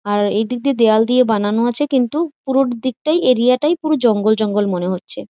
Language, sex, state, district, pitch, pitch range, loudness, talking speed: Bengali, female, West Bengal, Jhargram, 245 Hz, 215-270 Hz, -16 LUFS, 215 wpm